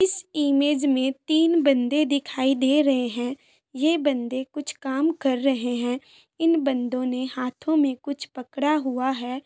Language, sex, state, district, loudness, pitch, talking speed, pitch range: Hindi, female, Bihar, Samastipur, -24 LUFS, 275 Hz, 160 wpm, 255-295 Hz